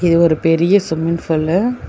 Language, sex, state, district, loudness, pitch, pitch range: Tamil, female, Tamil Nadu, Chennai, -15 LUFS, 170 Hz, 165-180 Hz